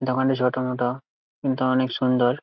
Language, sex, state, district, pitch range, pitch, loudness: Bengali, male, West Bengal, Jalpaiguri, 125-130 Hz, 130 Hz, -23 LUFS